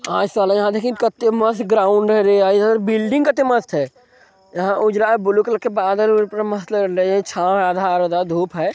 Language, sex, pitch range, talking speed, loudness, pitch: Maithili, male, 195-225 Hz, 235 wpm, -17 LUFS, 205 Hz